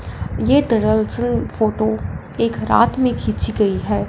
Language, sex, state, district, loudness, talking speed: Hindi, female, Punjab, Fazilka, -18 LUFS, 130 wpm